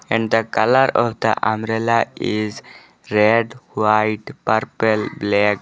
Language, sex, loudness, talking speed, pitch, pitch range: English, male, -19 LUFS, 115 wpm, 110 Hz, 105-115 Hz